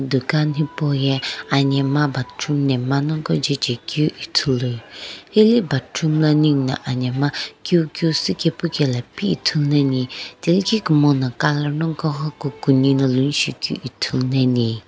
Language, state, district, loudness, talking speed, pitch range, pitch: Sumi, Nagaland, Dimapur, -19 LUFS, 135 wpm, 130-155 Hz, 145 Hz